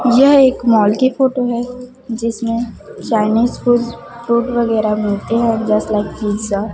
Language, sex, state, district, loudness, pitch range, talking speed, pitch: Hindi, female, Chhattisgarh, Raipur, -15 LUFS, 215-245 Hz, 150 wpm, 235 Hz